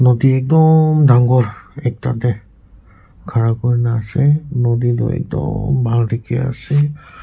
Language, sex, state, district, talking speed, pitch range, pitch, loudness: Nagamese, male, Nagaland, Kohima, 115 wpm, 115-135 Hz, 120 Hz, -16 LUFS